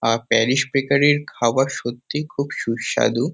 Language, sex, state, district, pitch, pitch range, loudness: Bengali, male, West Bengal, Kolkata, 135 Hz, 120-140 Hz, -20 LUFS